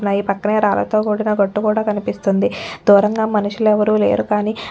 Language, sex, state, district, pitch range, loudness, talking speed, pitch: Telugu, female, Telangana, Nalgonda, 205-215 Hz, -17 LUFS, 140 wpm, 210 Hz